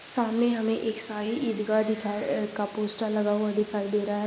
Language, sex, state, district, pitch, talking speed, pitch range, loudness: Hindi, female, Chhattisgarh, Raigarh, 215 Hz, 225 wpm, 210-225 Hz, -28 LUFS